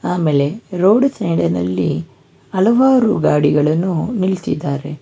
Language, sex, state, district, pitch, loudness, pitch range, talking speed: Kannada, male, Karnataka, Bangalore, 175 Hz, -16 LUFS, 145-210 Hz, 85 wpm